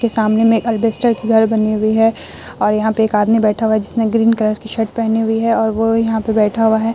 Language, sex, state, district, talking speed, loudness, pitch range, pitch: Hindi, female, Bihar, Vaishali, 285 wpm, -15 LUFS, 220-225 Hz, 220 Hz